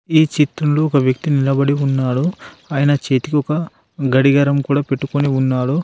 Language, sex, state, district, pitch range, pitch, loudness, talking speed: Telugu, male, Telangana, Adilabad, 135-150 Hz, 140 Hz, -17 LUFS, 135 wpm